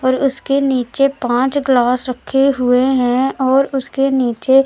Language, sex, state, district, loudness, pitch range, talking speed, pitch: Hindi, female, Punjab, Pathankot, -15 LUFS, 250-275 Hz, 140 wpm, 265 Hz